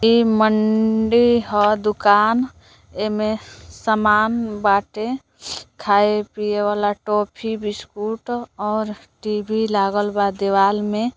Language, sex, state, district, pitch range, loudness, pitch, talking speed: Bhojpuri, female, Uttar Pradesh, Deoria, 205-220 Hz, -19 LUFS, 215 Hz, 95 wpm